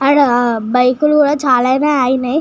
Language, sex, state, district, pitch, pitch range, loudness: Telugu, female, Telangana, Nalgonda, 260 Hz, 250-290 Hz, -13 LUFS